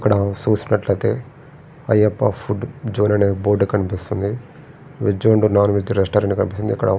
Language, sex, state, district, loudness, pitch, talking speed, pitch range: Telugu, male, Andhra Pradesh, Srikakulam, -19 LUFS, 105 Hz, 145 wpm, 100-120 Hz